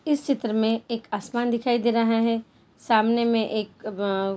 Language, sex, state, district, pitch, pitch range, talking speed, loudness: Hindi, female, Bihar, Jahanabad, 230 Hz, 215-235 Hz, 180 wpm, -24 LUFS